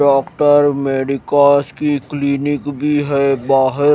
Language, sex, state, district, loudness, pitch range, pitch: Hindi, male, Himachal Pradesh, Shimla, -15 LUFS, 140-145 Hz, 140 Hz